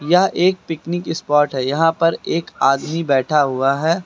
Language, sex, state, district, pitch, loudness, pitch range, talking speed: Hindi, male, Uttar Pradesh, Lucknow, 165 Hz, -18 LUFS, 140-170 Hz, 175 wpm